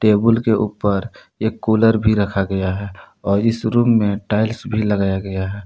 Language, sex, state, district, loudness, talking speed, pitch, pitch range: Hindi, male, Jharkhand, Palamu, -18 LUFS, 190 wpm, 105 Hz, 100-110 Hz